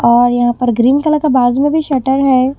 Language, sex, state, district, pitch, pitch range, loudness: Hindi, female, Chhattisgarh, Raipur, 260 Hz, 245-280 Hz, -12 LUFS